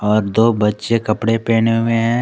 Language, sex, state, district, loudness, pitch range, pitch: Hindi, male, Jharkhand, Garhwa, -16 LUFS, 110-115 Hz, 115 Hz